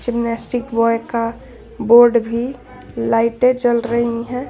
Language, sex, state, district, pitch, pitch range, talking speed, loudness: Hindi, female, Jharkhand, Garhwa, 235 Hz, 230-245 Hz, 120 wpm, -17 LUFS